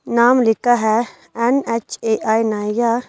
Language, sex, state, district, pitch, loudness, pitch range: Hindi, female, Delhi, New Delhi, 230 Hz, -17 LUFS, 220-240 Hz